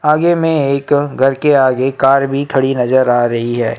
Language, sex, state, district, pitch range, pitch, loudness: Hindi, male, Maharashtra, Gondia, 130-145 Hz, 135 Hz, -13 LUFS